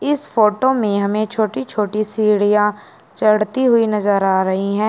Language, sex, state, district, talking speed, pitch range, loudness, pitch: Hindi, male, Uttar Pradesh, Shamli, 160 wpm, 205-220 Hz, -17 LUFS, 210 Hz